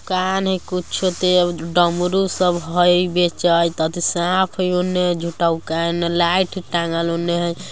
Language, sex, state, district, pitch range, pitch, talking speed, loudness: Bajjika, female, Bihar, Vaishali, 170-180 Hz, 175 Hz, 195 wpm, -19 LUFS